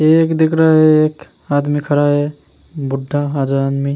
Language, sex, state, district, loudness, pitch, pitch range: Hindi, male, Bihar, Vaishali, -15 LUFS, 145 Hz, 140-155 Hz